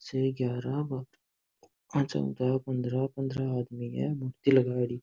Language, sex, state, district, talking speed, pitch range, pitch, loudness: Rajasthani, male, Rajasthan, Nagaur, 35 wpm, 125-135 Hz, 130 Hz, -31 LUFS